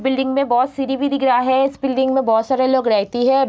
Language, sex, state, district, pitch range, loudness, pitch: Hindi, female, Bihar, Begusarai, 250-270 Hz, -17 LUFS, 265 Hz